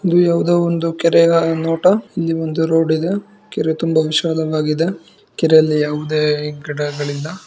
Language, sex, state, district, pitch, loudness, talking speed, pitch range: Kannada, female, Karnataka, Bijapur, 165 Hz, -17 LUFS, 120 wpm, 155-170 Hz